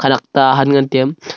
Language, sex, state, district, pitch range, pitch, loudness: Wancho, male, Arunachal Pradesh, Longding, 135-140 Hz, 135 Hz, -13 LUFS